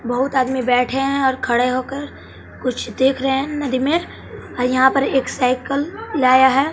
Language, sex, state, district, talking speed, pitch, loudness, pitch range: Hindi, male, Bihar, West Champaran, 180 wpm, 265 Hz, -18 LUFS, 255-275 Hz